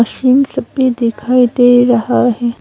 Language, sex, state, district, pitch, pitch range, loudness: Hindi, female, Arunachal Pradesh, Longding, 245 Hz, 235-255 Hz, -12 LUFS